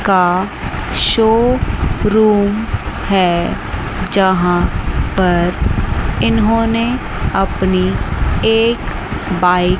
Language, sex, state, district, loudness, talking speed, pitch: Hindi, female, Chandigarh, Chandigarh, -15 LUFS, 60 wpm, 180 Hz